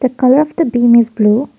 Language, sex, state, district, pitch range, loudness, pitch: English, female, Assam, Kamrup Metropolitan, 235-275 Hz, -12 LUFS, 245 Hz